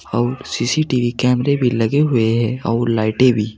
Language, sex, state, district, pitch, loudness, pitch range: Hindi, male, Uttar Pradesh, Saharanpur, 120 Hz, -17 LUFS, 115-130 Hz